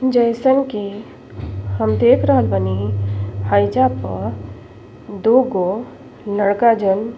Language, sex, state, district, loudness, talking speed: Bhojpuri, female, Uttar Pradesh, Ghazipur, -17 LUFS, 100 wpm